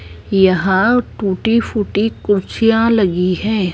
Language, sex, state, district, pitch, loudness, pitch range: Hindi, female, Rajasthan, Jaipur, 205 Hz, -15 LUFS, 185-225 Hz